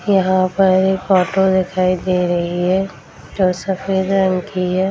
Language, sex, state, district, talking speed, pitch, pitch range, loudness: Hindi, female, Bihar, Darbhanga, 160 wpm, 185 Hz, 185-190 Hz, -16 LUFS